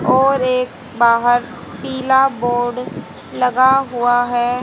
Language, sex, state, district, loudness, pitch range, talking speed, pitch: Hindi, female, Haryana, Jhajjar, -16 LUFS, 245-260 Hz, 105 wpm, 250 Hz